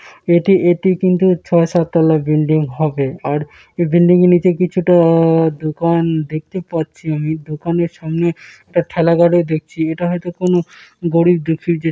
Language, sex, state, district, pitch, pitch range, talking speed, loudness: Bengali, male, West Bengal, Malda, 170 Hz, 160-175 Hz, 150 wpm, -15 LUFS